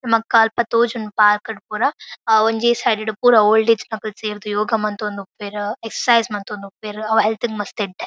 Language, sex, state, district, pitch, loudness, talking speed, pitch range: Tulu, female, Karnataka, Dakshina Kannada, 215 Hz, -18 LUFS, 185 wpm, 210-225 Hz